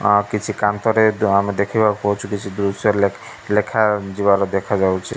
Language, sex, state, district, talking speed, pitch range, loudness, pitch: Odia, male, Odisha, Malkangiri, 130 wpm, 100-105 Hz, -18 LUFS, 105 Hz